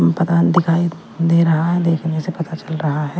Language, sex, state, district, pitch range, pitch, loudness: Hindi, female, Bihar, Patna, 160-170 Hz, 165 Hz, -17 LUFS